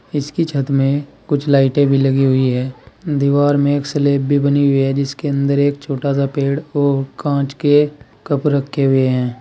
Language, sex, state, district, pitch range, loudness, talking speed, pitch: Hindi, male, Uttar Pradesh, Saharanpur, 135-145 Hz, -16 LUFS, 190 wpm, 140 Hz